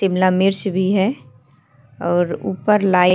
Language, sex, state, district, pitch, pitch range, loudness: Hindi, female, Uttarakhand, Tehri Garhwal, 185 Hz, 155-195 Hz, -18 LUFS